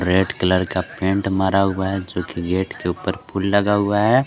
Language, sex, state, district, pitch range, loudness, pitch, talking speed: Hindi, male, Jharkhand, Garhwa, 95-100 Hz, -20 LUFS, 95 Hz, 225 wpm